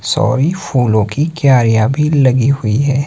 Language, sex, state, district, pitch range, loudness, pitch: Hindi, male, Himachal Pradesh, Shimla, 120-145 Hz, -13 LUFS, 135 Hz